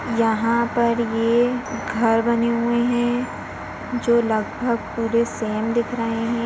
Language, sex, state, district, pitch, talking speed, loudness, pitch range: Hindi, female, Bihar, Gaya, 235 Hz, 130 wpm, -21 LUFS, 225-235 Hz